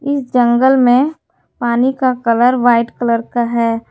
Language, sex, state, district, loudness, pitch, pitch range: Hindi, female, Jharkhand, Garhwa, -14 LUFS, 245 Hz, 235-260 Hz